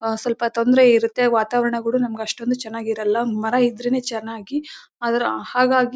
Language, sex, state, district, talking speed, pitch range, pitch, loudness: Kannada, female, Karnataka, Bellary, 140 wpm, 225-250 Hz, 235 Hz, -20 LUFS